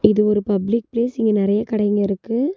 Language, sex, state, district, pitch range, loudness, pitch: Tamil, female, Tamil Nadu, Nilgiris, 205-230 Hz, -19 LUFS, 215 Hz